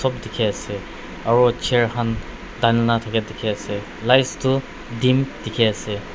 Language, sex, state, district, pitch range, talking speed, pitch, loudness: Nagamese, male, Nagaland, Dimapur, 110-125 Hz, 135 wpm, 115 Hz, -21 LUFS